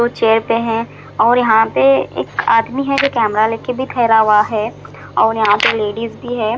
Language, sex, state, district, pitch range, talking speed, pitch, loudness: Hindi, male, Punjab, Fazilka, 215-235 Hz, 200 wpm, 225 Hz, -15 LUFS